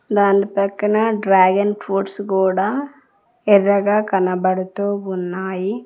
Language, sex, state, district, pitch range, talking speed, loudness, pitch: Telugu, female, Telangana, Mahabubabad, 190-205 Hz, 80 wpm, -18 LUFS, 200 Hz